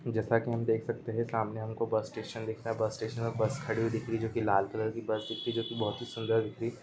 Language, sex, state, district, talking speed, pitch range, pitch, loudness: Hindi, male, Chhattisgarh, Bastar, 325 wpm, 110-115 Hz, 115 Hz, -33 LUFS